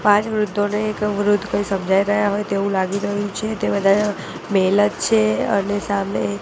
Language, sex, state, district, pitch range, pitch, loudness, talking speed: Gujarati, female, Gujarat, Gandhinagar, 195-210 Hz, 205 Hz, -19 LUFS, 180 wpm